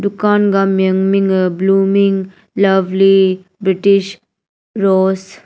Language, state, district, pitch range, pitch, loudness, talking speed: Nyishi, Arunachal Pradesh, Papum Pare, 190-195 Hz, 195 Hz, -13 LUFS, 110 wpm